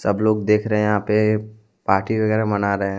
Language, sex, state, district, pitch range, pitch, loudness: Hindi, male, Jharkhand, Deoghar, 100-110 Hz, 105 Hz, -19 LUFS